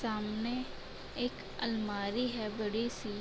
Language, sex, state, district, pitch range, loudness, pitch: Hindi, female, Uttar Pradesh, Budaun, 210-240 Hz, -37 LUFS, 220 Hz